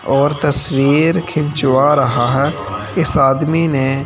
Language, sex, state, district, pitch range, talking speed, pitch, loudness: Hindi, male, Delhi, New Delhi, 135-150 Hz, 120 wpm, 140 Hz, -14 LUFS